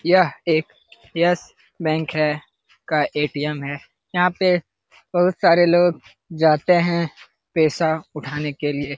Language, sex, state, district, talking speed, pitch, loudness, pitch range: Hindi, male, Bihar, Lakhisarai, 125 wpm, 160 Hz, -20 LUFS, 150-175 Hz